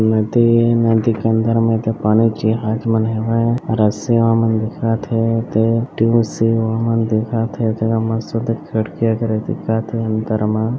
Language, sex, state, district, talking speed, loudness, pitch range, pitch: Hindi, male, Chhattisgarh, Bilaspur, 190 wpm, -17 LUFS, 110-115 Hz, 115 Hz